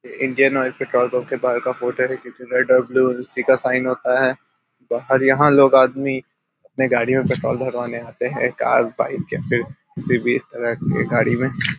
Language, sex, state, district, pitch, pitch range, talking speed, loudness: Hindi, male, Bihar, Darbhanga, 130 Hz, 125-130 Hz, 205 wpm, -19 LUFS